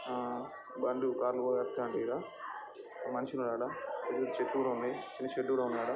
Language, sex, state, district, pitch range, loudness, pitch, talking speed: Telugu, male, Andhra Pradesh, Srikakulam, 125-130 Hz, -36 LUFS, 125 Hz, 130 wpm